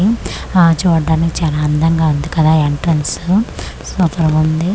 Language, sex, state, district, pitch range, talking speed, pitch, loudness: Telugu, female, Andhra Pradesh, Manyam, 155-175 Hz, 125 wpm, 160 Hz, -14 LUFS